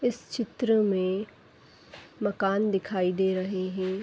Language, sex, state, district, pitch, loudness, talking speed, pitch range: Hindi, female, Uttar Pradesh, Etah, 195 Hz, -28 LUFS, 120 wpm, 185-215 Hz